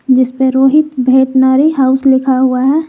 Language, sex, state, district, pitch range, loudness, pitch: Hindi, female, Jharkhand, Garhwa, 260-270 Hz, -10 LUFS, 265 Hz